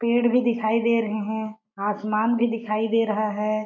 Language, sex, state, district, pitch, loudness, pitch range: Hindi, female, Chhattisgarh, Balrampur, 220 Hz, -23 LUFS, 215-230 Hz